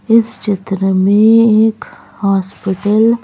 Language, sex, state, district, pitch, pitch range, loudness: Hindi, female, Madhya Pradesh, Bhopal, 210 Hz, 195-220 Hz, -13 LUFS